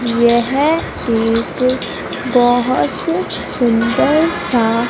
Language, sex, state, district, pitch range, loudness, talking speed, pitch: Hindi, female, Madhya Pradesh, Umaria, 235-280 Hz, -15 LUFS, 60 wpm, 245 Hz